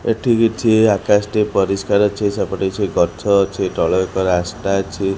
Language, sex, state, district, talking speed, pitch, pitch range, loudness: Odia, male, Odisha, Khordha, 150 wpm, 100 Hz, 95-105 Hz, -17 LUFS